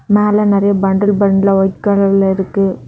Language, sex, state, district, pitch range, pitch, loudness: Tamil, female, Tamil Nadu, Kanyakumari, 195-205 Hz, 195 Hz, -13 LUFS